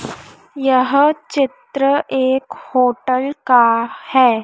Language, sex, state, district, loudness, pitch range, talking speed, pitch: Hindi, female, Madhya Pradesh, Dhar, -16 LUFS, 255-280 Hz, 80 wpm, 260 Hz